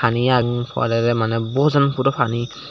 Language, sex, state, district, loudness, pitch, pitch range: Chakma, male, Tripura, Dhalai, -19 LUFS, 120 Hz, 115-135 Hz